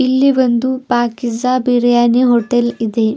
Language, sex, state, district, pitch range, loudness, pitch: Kannada, female, Karnataka, Bidar, 235-255 Hz, -14 LUFS, 245 Hz